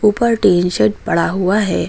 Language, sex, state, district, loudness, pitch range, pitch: Hindi, female, Uttar Pradesh, Lucknow, -15 LUFS, 180-210 Hz, 195 Hz